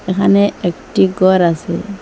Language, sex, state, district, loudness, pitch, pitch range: Bengali, female, Assam, Hailakandi, -14 LUFS, 190 Hz, 175-200 Hz